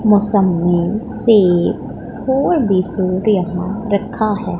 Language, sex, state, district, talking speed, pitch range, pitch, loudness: Hindi, female, Punjab, Pathankot, 105 wpm, 185-215 Hz, 200 Hz, -16 LUFS